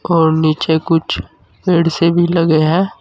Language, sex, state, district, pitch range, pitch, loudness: Hindi, male, Uttar Pradesh, Saharanpur, 160-170 Hz, 165 Hz, -14 LUFS